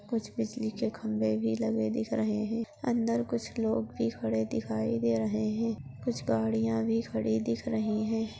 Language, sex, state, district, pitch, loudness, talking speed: Hindi, female, Maharashtra, Solapur, 115 Hz, -31 LUFS, 180 wpm